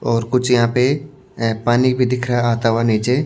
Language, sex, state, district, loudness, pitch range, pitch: Hindi, male, Maharashtra, Washim, -17 LUFS, 115-130 Hz, 125 Hz